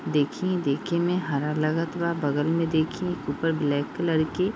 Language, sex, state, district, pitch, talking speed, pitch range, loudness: Bhojpuri, female, Bihar, East Champaran, 165 Hz, 200 wpm, 150-170 Hz, -26 LUFS